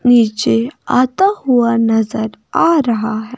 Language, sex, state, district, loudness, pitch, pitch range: Hindi, female, Himachal Pradesh, Shimla, -14 LUFS, 235 Hz, 220-255 Hz